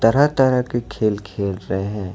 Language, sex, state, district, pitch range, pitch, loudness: Hindi, male, Jharkhand, Ranchi, 100-125 Hz, 105 Hz, -20 LUFS